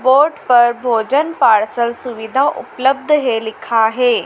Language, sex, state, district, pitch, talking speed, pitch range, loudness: Hindi, female, Madhya Pradesh, Dhar, 245 Hz, 125 wpm, 230-270 Hz, -15 LUFS